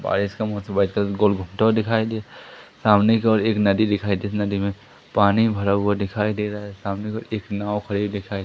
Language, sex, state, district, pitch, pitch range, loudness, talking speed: Hindi, male, Madhya Pradesh, Umaria, 105 Hz, 100-110 Hz, -22 LUFS, 235 wpm